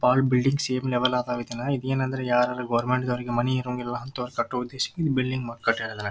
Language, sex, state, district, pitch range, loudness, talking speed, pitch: Kannada, male, Karnataka, Dharwad, 120-130 Hz, -26 LUFS, 165 wpm, 125 Hz